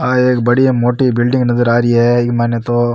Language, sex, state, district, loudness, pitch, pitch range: Rajasthani, male, Rajasthan, Nagaur, -13 LUFS, 120 Hz, 120-125 Hz